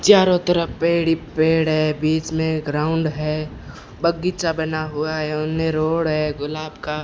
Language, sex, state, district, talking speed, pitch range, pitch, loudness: Hindi, female, Rajasthan, Bikaner, 170 wpm, 155-165 Hz, 155 Hz, -20 LUFS